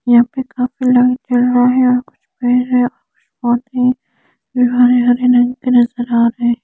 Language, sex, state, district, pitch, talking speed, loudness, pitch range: Hindi, female, Chandigarh, Chandigarh, 250 Hz, 45 wpm, -14 LUFS, 245-250 Hz